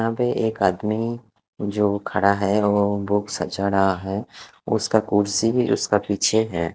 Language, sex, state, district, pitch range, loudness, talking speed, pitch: Hindi, male, Odisha, Khordha, 100-110 Hz, -22 LUFS, 150 wpm, 100 Hz